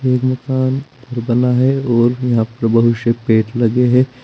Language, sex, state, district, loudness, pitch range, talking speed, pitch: Hindi, male, Uttar Pradesh, Saharanpur, -15 LUFS, 115-130 Hz, 155 wpm, 125 Hz